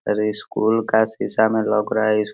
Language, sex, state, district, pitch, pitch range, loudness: Hindi, male, Bihar, Sitamarhi, 110 Hz, 105-110 Hz, -20 LUFS